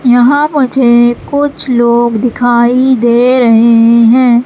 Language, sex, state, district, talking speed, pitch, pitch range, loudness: Hindi, female, Madhya Pradesh, Katni, 110 wpm, 245 Hz, 235-255 Hz, -8 LUFS